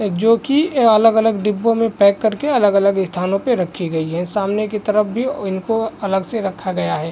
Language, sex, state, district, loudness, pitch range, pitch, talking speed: Hindi, male, Chhattisgarh, Bilaspur, -17 LUFS, 195-225 Hz, 210 Hz, 225 wpm